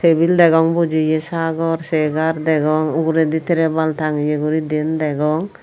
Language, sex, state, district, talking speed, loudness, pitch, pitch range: Chakma, female, Tripura, Unakoti, 130 wpm, -17 LUFS, 160 Hz, 155-165 Hz